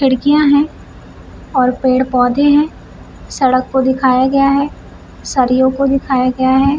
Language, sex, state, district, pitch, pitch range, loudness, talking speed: Hindi, female, Bihar, Samastipur, 265 Hz, 255-280 Hz, -13 LUFS, 140 wpm